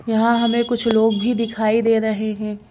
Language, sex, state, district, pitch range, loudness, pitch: Hindi, female, Madhya Pradesh, Bhopal, 215-235 Hz, -19 LUFS, 225 Hz